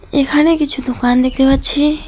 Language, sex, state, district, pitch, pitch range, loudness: Bengali, female, West Bengal, Alipurduar, 275 Hz, 260-300 Hz, -13 LUFS